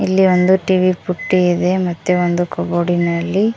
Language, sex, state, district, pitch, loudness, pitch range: Kannada, female, Karnataka, Koppal, 180 Hz, -16 LUFS, 175-185 Hz